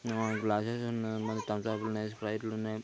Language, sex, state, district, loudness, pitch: Telugu, male, Andhra Pradesh, Srikakulam, -34 LUFS, 110 Hz